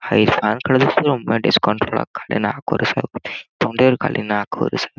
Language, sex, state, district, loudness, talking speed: Kannada, male, Karnataka, Gulbarga, -18 LUFS, 155 wpm